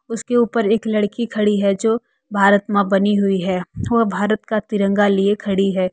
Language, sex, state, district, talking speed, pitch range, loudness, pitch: Hindi, female, Jharkhand, Deoghar, 180 wpm, 200-225 Hz, -18 LUFS, 205 Hz